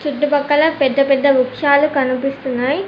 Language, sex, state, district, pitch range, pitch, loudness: Telugu, female, Telangana, Komaram Bheem, 270-290 Hz, 280 Hz, -15 LUFS